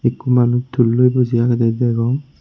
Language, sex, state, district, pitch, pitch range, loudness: Chakma, male, Tripura, Unakoti, 120 Hz, 120-125 Hz, -16 LUFS